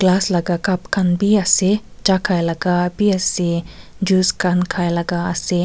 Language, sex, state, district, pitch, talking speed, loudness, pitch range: Nagamese, female, Nagaland, Kohima, 180 Hz, 170 wpm, -18 LUFS, 175-190 Hz